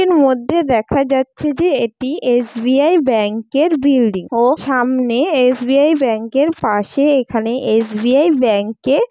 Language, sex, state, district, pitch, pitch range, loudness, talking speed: Bengali, female, West Bengal, Jalpaiguri, 260 Hz, 230-285 Hz, -15 LUFS, 145 wpm